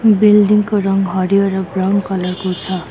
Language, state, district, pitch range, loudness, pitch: Nepali, West Bengal, Darjeeling, 185-205 Hz, -15 LUFS, 195 Hz